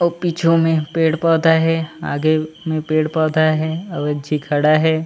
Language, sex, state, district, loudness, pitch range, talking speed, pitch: Chhattisgarhi, male, Chhattisgarh, Raigarh, -17 LUFS, 155-165 Hz, 155 wpm, 160 Hz